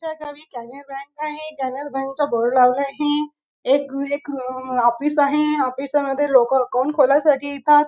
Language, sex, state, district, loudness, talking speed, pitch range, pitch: Marathi, female, Maharashtra, Chandrapur, -20 LUFS, 150 wpm, 260-295 Hz, 280 Hz